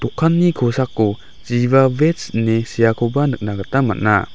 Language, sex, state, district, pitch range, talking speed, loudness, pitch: Garo, male, Meghalaya, West Garo Hills, 110-135 Hz, 110 wpm, -17 LUFS, 120 Hz